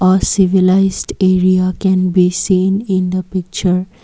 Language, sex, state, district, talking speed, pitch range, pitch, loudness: English, female, Assam, Kamrup Metropolitan, 135 wpm, 185-190 Hz, 185 Hz, -14 LUFS